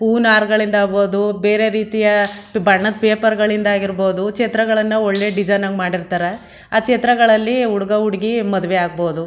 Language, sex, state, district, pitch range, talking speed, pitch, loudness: Kannada, female, Karnataka, Mysore, 200-220 Hz, 115 wpm, 210 Hz, -16 LUFS